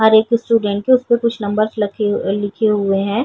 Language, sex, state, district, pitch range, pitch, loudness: Hindi, female, Uttar Pradesh, Jyotiba Phule Nagar, 205-235 Hz, 215 Hz, -17 LUFS